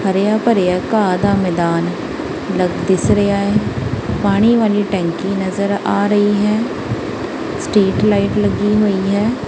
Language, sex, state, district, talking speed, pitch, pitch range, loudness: Punjabi, female, Punjab, Kapurthala, 120 wpm, 200 Hz, 180-210 Hz, -16 LUFS